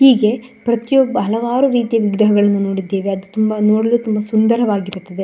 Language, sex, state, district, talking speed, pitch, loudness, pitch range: Kannada, female, Karnataka, Shimoga, 105 wpm, 215 Hz, -16 LUFS, 200-235 Hz